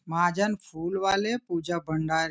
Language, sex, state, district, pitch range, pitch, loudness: Hindi, male, Maharashtra, Nagpur, 165-195 Hz, 175 Hz, -28 LUFS